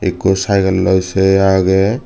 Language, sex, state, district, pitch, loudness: Chakma, male, Tripura, Dhalai, 95 Hz, -13 LUFS